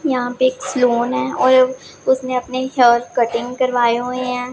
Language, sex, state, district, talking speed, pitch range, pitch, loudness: Hindi, female, Punjab, Pathankot, 160 wpm, 240-255 Hz, 250 Hz, -17 LUFS